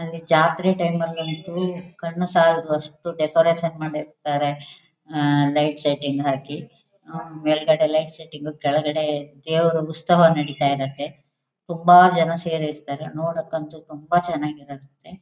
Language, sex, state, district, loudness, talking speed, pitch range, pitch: Kannada, female, Karnataka, Shimoga, -21 LUFS, 120 wpm, 150-165 Hz, 155 Hz